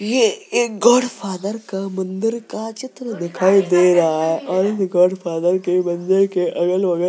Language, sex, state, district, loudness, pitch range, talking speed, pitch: Hindi, female, Uttar Pradesh, Jalaun, -18 LUFS, 180-220 Hz, 195 wpm, 190 Hz